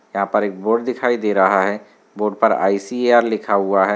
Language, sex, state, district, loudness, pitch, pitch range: Hindi, male, Rajasthan, Nagaur, -18 LUFS, 105 Hz, 100-115 Hz